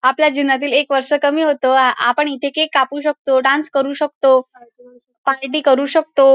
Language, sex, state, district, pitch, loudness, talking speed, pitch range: Marathi, female, Maharashtra, Dhule, 275 Hz, -16 LUFS, 170 wpm, 265-295 Hz